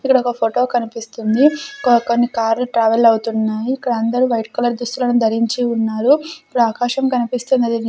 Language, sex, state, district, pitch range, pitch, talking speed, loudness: Telugu, female, Andhra Pradesh, Sri Satya Sai, 230-250 Hz, 240 Hz, 150 wpm, -17 LUFS